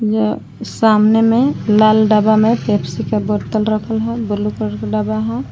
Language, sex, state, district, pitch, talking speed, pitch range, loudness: Hindi, female, Jharkhand, Palamu, 215 Hz, 175 wpm, 160-220 Hz, -15 LUFS